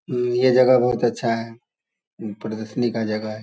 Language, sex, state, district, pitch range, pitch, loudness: Hindi, male, Bihar, Saharsa, 110-125 Hz, 115 Hz, -21 LUFS